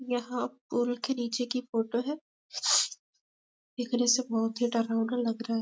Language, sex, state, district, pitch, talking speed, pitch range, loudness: Hindi, male, Chhattisgarh, Bastar, 245 Hz, 160 wpm, 230-250 Hz, -30 LUFS